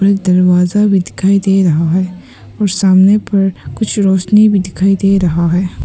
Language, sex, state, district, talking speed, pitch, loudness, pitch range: Hindi, female, Arunachal Pradesh, Papum Pare, 165 wpm, 195 Hz, -12 LUFS, 180-200 Hz